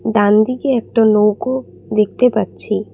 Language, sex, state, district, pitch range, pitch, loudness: Bengali, female, Assam, Kamrup Metropolitan, 210-250 Hz, 225 Hz, -15 LUFS